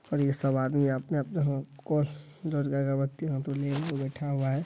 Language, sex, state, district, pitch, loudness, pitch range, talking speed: Hindi, male, Bihar, Saharsa, 140 Hz, -30 LUFS, 135-150 Hz, 195 wpm